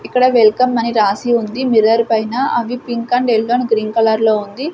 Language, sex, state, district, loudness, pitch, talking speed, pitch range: Telugu, female, Andhra Pradesh, Sri Satya Sai, -15 LUFS, 230 Hz, 190 wpm, 220-245 Hz